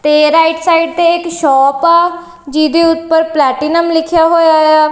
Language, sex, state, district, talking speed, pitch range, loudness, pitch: Punjabi, female, Punjab, Kapurthala, 160 wpm, 310-335 Hz, -10 LUFS, 325 Hz